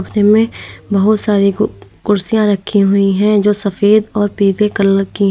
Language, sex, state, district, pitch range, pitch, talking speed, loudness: Hindi, female, Uttar Pradesh, Lalitpur, 200-215 Hz, 205 Hz, 170 wpm, -13 LUFS